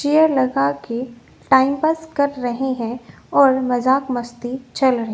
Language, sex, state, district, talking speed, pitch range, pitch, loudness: Hindi, female, Bihar, West Champaran, 175 wpm, 240-280 Hz, 260 Hz, -19 LUFS